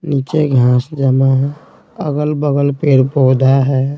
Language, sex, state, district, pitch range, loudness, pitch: Hindi, male, Bihar, Patna, 130-145 Hz, -14 LUFS, 140 Hz